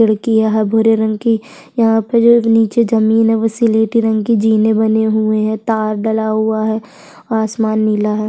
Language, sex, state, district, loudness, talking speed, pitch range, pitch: Hindi, female, Chhattisgarh, Sukma, -14 LUFS, 195 wpm, 220-225 Hz, 220 Hz